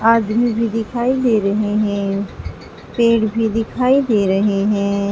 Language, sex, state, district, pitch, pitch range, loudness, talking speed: Hindi, female, Uttar Pradesh, Saharanpur, 220 Hz, 200-230 Hz, -17 LUFS, 140 wpm